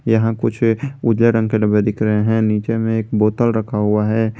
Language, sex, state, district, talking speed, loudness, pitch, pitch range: Hindi, male, Jharkhand, Garhwa, 220 wpm, -17 LUFS, 110 Hz, 105-115 Hz